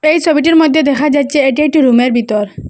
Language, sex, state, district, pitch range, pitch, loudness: Bengali, female, Assam, Hailakandi, 245-310 Hz, 285 Hz, -11 LUFS